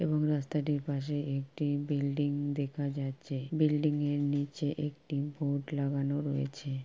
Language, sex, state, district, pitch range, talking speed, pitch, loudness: Bengali, female, West Bengal, Purulia, 140-150 Hz, 115 wpm, 145 Hz, -33 LUFS